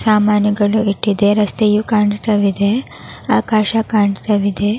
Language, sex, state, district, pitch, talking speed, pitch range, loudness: Kannada, female, Karnataka, Raichur, 210 Hz, 90 wpm, 205-215 Hz, -15 LUFS